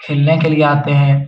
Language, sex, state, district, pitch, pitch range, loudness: Hindi, male, Bihar, Jahanabad, 145 Hz, 140-155 Hz, -13 LUFS